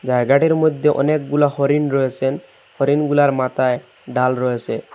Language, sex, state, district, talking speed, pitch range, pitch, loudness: Bengali, male, Assam, Hailakandi, 120 wpm, 125-145 Hz, 140 Hz, -18 LUFS